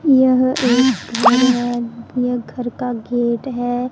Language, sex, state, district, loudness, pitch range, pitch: Hindi, female, Punjab, Pathankot, -17 LUFS, 240-255 Hz, 245 Hz